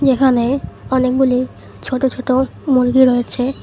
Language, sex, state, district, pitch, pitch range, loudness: Bengali, female, West Bengal, Cooch Behar, 255 Hz, 255-265 Hz, -16 LUFS